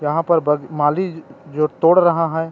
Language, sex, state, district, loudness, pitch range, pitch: Chhattisgarhi, male, Chhattisgarh, Rajnandgaon, -17 LUFS, 150-170 Hz, 160 Hz